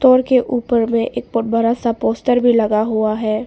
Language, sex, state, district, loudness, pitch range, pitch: Hindi, female, Arunachal Pradesh, Papum Pare, -16 LUFS, 225-245 Hz, 230 Hz